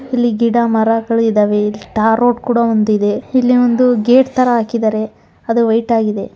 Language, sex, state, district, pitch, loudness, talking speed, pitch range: Kannada, male, Karnataka, Mysore, 230 Hz, -14 LUFS, 170 wpm, 220-245 Hz